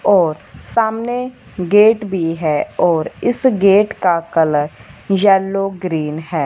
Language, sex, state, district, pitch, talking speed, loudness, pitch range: Hindi, female, Punjab, Fazilka, 190 Hz, 120 wpm, -16 LUFS, 160-210 Hz